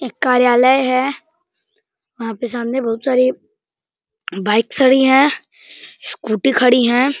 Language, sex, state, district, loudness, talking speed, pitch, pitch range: Hindi, male, Uttar Pradesh, Deoria, -15 LUFS, 115 wpm, 260 Hz, 245-285 Hz